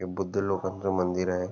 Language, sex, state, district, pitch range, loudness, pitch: Marathi, male, Karnataka, Belgaum, 90-95 Hz, -29 LUFS, 95 Hz